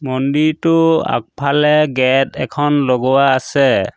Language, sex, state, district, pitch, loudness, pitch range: Assamese, male, Assam, Sonitpur, 140 Hz, -14 LUFS, 135-150 Hz